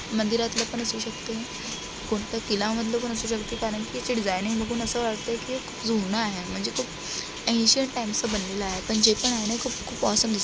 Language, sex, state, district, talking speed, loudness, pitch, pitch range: Marathi, female, Maharashtra, Dhule, 200 wpm, -26 LUFS, 225 Hz, 215-235 Hz